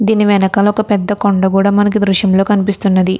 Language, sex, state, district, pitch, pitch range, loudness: Telugu, female, Andhra Pradesh, Krishna, 200 Hz, 195-205 Hz, -12 LUFS